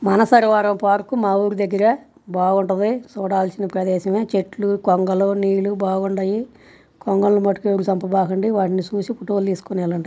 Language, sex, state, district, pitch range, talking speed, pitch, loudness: Telugu, female, Andhra Pradesh, Guntur, 190-205 Hz, 120 wpm, 195 Hz, -19 LUFS